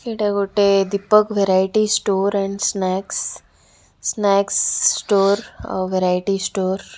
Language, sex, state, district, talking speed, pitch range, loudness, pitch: Odia, female, Odisha, Khordha, 110 wpm, 190-205 Hz, -19 LUFS, 200 Hz